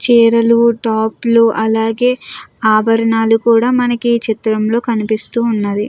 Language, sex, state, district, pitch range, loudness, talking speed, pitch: Telugu, female, Andhra Pradesh, Chittoor, 220-235 Hz, -13 LUFS, 90 wpm, 225 Hz